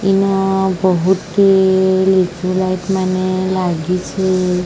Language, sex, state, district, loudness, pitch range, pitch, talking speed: Odia, male, Odisha, Sambalpur, -15 LUFS, 185-190 Hz, 185 Hz, 75 wpm